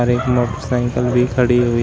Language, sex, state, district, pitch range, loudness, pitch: Hindi, male, Uttar Pradesh, Shamli, 120-125 Hz, -17 LUFS, 125 Hz